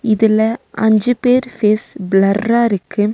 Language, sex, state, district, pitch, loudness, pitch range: Tamil, female, Tamil Nadu, Nilgiris, 220 Hz, -15 LUFS, 210-235 Hz